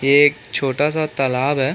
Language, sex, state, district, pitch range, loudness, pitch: Hindi, male, Chhattisgarh, Bilaspur, 135-145 Hz, -18 LUFS, 140 Hz